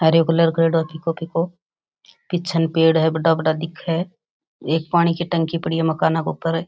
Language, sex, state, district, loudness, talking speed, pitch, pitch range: Rajasthani, female, Rajasthan, Nagaur, -20 LUFS, 200 wpm, 165 Hz, 160-170 Hz